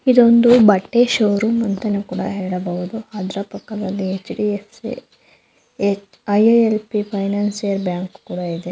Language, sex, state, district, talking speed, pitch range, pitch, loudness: Kannada, female, Karnataka, Mysore, 95 wpm, 195-225 Hz, 205 Hz, -18 LUFS